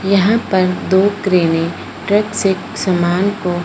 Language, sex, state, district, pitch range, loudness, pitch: Hindi, female, Punjab, Fazilka, 180-200 Hz, -15 LUFS, 190 Hz